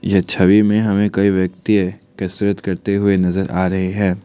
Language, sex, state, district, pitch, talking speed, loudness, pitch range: Hindi, male, Assam, Kamrup Metropolitan, 95 Hz, 185 wpm, -17 LUFS, 95-100 Hz